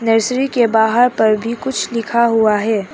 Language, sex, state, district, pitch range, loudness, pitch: Hindi, female, Arunachal Pradesh, Papum Pare, 220-235 Hz, -15 LUFS, 230 Hz